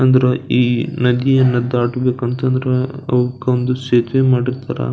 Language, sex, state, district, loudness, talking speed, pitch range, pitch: Kannada, male, Karnataka, Belgaum, -16 LUFS, 120 wpm, 125-130 Hz, 125 Hz